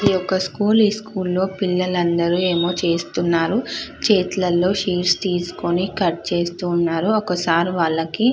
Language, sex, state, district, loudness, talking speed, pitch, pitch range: Telugu, female, Andhra Pradesh, Chittoor, -20 LUFS, 145 wpm, 180 Hz, 170-190 Hz